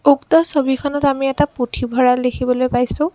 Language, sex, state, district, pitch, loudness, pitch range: Assamese, female, Assam, Kamrup Metropolitan, 270 Hz, -17 LUFS, 250-285 Hz